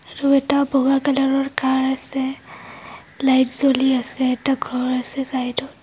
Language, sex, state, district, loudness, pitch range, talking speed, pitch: Assamese, female, Assam, Kamrup Metropolitan, -19 LUFS, 260-275 Hz, 135 wpm, 265 Hz